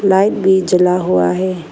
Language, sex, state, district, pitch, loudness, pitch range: Hindi, female, Arunachal Pradesh, Lower Dibang Valley, 185 Hz, -14 LUFS, 180-190 Hz